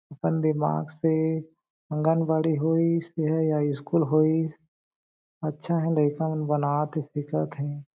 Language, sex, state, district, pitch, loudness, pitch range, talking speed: Chhattisgarhi, male, Chhattisgarh, Jashpur, 155 Hz, -26 LUFS, 145-160 Hz, 120 wpm